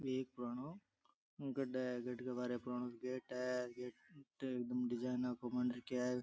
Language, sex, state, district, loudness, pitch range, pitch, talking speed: Rajasthani, male, Rajasthan, Churu, -44 LUFS, 125-130 Hz, 125 Hz, 155 wpm